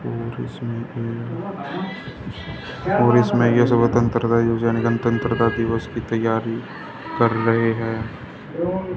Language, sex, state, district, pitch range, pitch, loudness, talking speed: Hindi, male, Haryana, Jhajjar, 115-120 Hz, 115 Hz, -21 LUFS, 115 wpm